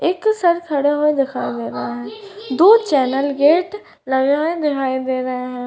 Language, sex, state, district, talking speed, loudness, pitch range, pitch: Hindi, female, Uttarakhand, Uttarkashi, 180 wpm, -17 LUFS, 260-345 Hz, 285 Hz